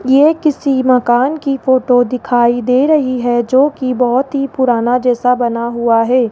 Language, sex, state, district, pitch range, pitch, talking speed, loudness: Hindi, male, Rajasthan, Jaipur, 245-270 Hz, 250 Hz, 170 wpm, -13 LUFS